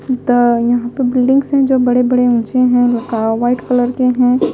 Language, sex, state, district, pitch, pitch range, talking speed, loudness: Hindi, female, Himachal Pradesh, Shimla, 250 Hz, 240-255 Hz, 170 wpm, -13 LUFS